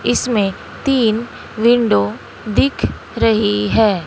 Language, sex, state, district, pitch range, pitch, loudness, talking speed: Hindi, female, Bihar, West Champaran, 180-235 Hz, 215 Hz, -16 LUFS, 90 wpm